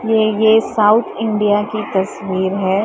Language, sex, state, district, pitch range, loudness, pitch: Hindi, female, Maharashtra, Mumbai Suburban, 195-220 Hz, -16 LUFS, 210 Hz